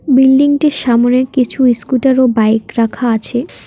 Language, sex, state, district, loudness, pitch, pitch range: Bengali, female, West Bengal, Cooch Behar, -12 LUFS, 255 Hz, 235-265 Hz